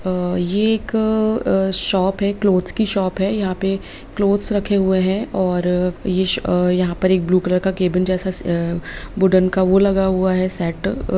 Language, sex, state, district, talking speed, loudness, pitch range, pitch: Hindi, female, Bihar, Lakhisarai, 175 wpm, -17 LUFS, 180-200 Hz, 190 Hz